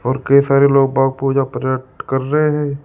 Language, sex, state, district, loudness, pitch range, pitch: Hindi, male, Rajasthan, Jaipur, -15 LUFS, 130-140 Hz, 135 Hz